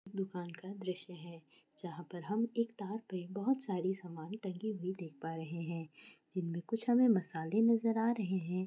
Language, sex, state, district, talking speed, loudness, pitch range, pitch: Hindi, female, Maharashtra, Aurangabad, 185 wpm, -37 LUFS, 170-215 Hz, 185 Hz